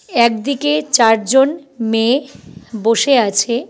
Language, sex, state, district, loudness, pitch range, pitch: Bengali, female, West Bengal, Cooch Behar, -15 LUFS, 225-280 Hz, 240 Hz